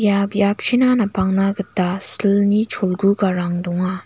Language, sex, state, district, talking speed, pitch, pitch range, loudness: Garo, female, Meghalaya, West Garo Hills, 105 wpm, 200 Hz, 185-205 Hz, -17 LUFS